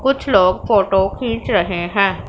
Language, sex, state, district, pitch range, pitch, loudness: Hindi, female, Punjab, Pathankot, 190-245 Hz, 200 Hz, -16 LUFS